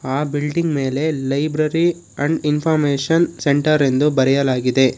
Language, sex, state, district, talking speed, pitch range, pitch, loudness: Kannada, male, Karnataka, Bangalore, 110 wpm, 135-155 Hz, 145 Hz, -18 LUFS